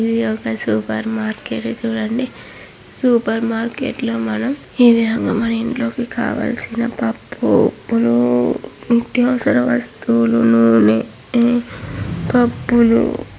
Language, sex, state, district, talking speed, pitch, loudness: Telugu, male, Andhra Pradesh, Chittoor, 80 wpm, 225 Hz, -17 LUFS